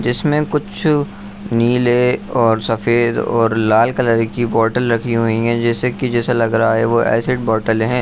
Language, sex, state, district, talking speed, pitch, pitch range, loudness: Hindi, male, Bihar, Saharsa, 170 wpm, 115 Hz, 115-125 Hz, -16 LUFS